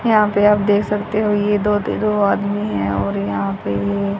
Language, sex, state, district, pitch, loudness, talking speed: Hindi, female, Haryana, Charkhi Dadri, 205 Hz, -18 LUFS, 185 wpm